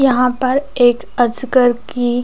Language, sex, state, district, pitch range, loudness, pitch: Hindi, female, Chhattisgarh, Raigarh, 245-260 Hz, -15 LUFS, 250 Hz